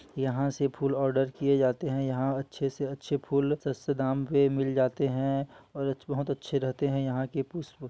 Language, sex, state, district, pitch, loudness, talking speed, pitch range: Hindi, male, Chhattisgarh, Kabirdham, 135 Hz, -29 LUFS, 205 wpm, 135-140 Hz